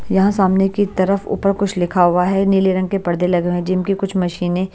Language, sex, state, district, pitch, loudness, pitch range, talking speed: Hindi, female, Bihar, Patna, 190 Hz, -17 LUFS, 180-195 Hz, 255 wpm